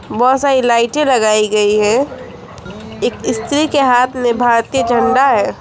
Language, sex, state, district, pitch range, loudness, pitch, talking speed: Hindi, female, West Bengal, Alipurduar, 235-265 Hz, -13 LUFS, 245 Hz, 150 wpm